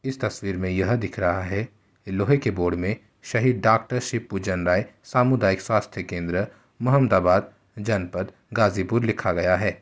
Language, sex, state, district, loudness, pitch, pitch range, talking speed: Hindi, male, Uttar Pradesh, Ghazipur, -24 LUFS, 105 Hz, 95-120 Hz, 155 wpm